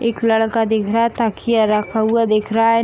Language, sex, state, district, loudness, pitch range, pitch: Hindi, female, Bihar, Gopalganj, -17 LUFS, 220-230 Hz, 225 Hz